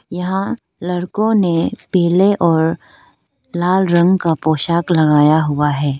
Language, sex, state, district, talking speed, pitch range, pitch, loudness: Hindi, female, Arunachal Pradesh, Lower Dibang Valley, 120 wpm, 160-185 Hz, 175 Hz, -15 LUFS